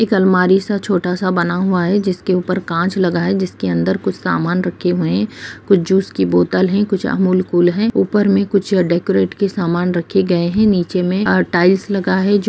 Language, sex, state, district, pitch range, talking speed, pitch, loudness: Kumaoni, female, Uttarakhand, Uttarkashi, 175-195 Hz, 215 wpm, 185 Hz, -16 LUFS